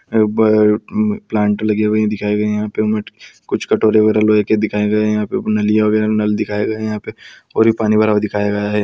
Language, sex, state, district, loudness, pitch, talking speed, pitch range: Hindi, male, Bihar, Araria, -16 LUFS, 105 Hz, 245 wpm, 105-110 Hz